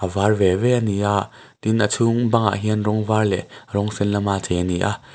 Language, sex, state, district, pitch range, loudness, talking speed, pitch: Mizo, male, Mizoram, Aizawl, 100-110 Hz, -20 LUFS, 245 wpm, 100 Hz